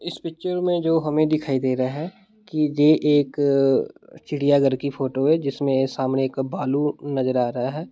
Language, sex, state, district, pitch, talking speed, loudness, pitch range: Hindi, male, Bihar, Muzaffarpur, 145 Hz, 180 wpm, -22 LUFS, 135-155 Hz